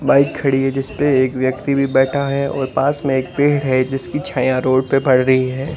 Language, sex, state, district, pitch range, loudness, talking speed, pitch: Hindi, male, Rajasthan, Barmer, 130-140 Hz, -17 LUFS, 240 wpm, 135 Hz